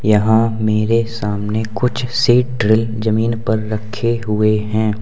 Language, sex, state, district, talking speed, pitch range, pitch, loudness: Hindi, male, Uttar Pradesh, Lalitpur, 120 wpm, 110-115 Hz, 110 Hz, -17 LUFS